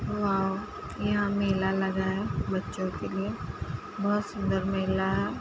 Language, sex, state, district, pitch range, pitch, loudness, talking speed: Hindi, female, Uttar Pradesh, Jalaun, 190-205 Hz, 195 Hz, -29 LUFS, 135 wpm